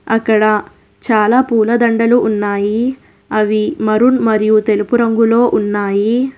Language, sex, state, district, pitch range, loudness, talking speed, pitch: Telugu, female, Telangana, Hyderabad, 215-235 Hz, -13 LUFS, 95 wpm, 220 Hz